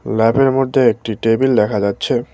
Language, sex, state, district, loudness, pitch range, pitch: Bengali, male, West Bengal, Cooch Behar, -15 LUFS, 110-130 Hz, 115 Hz